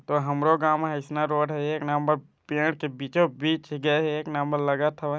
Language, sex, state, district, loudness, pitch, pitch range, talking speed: Chhattisgarhi, male, Chhattisgarh, Bilaspur, -26 LUFS, 150 Hz, 145-155 Hz, 220 wpm